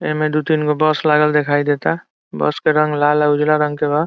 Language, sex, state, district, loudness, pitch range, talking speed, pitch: Bhojpuri, male, Bihar, Saran, -16 LUFS, 150-155 Hz, 295 wpm, 150 Hz